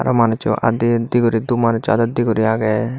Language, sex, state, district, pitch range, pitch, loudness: Chakma, male, Tripura, Dhalai, 110-120 Hz, 115 Hz, -17 LUFS